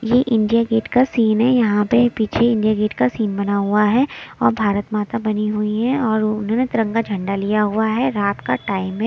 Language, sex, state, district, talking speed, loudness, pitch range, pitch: Hindi, female, Chhattisgarh, Raipur, 220 wpm, -18 LUFS, 210-230 Hz, 215 Hz